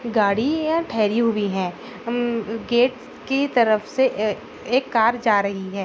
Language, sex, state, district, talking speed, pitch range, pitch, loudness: Hindi, female, Maharashtra, Pune, 155 wpm, 210-250 Hz, 235 Hz, -21 LUFS